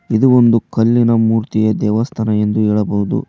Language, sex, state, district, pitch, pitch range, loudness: Kannada, male, Karnataka, Koppal, 110 Hz, 105-115 Hz, -14 LUFS